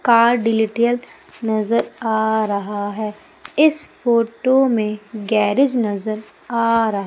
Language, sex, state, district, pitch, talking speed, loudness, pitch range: Hindi, female, Madhya Pradesh, Umaria, 225 Hz, 110 wpm, -19 LUFS, 215-240 Hz